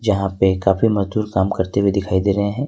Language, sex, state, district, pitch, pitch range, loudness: Hindi, male, Jharkhand, Ranchi, 100 Hz, 95-105 Hz, -18 LUFS